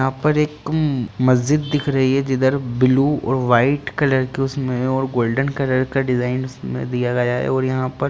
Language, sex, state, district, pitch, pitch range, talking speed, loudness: Hindi, male, Bihar, Jahanabad, 130 Hz, 125-140 Hz, 195 wpm, -19 LUFS